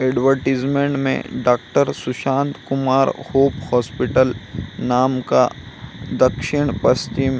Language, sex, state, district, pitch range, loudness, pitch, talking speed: Hindi, male, Bihar, Samastipur, 125-135 Hz, -19 LUFS, 130 Hz, 90 wpm